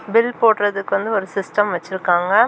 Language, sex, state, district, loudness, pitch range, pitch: Tamil, female, Tamil Nadu, Kanyakumari, -19 LUFS, 190-220 Hz, 200 Hz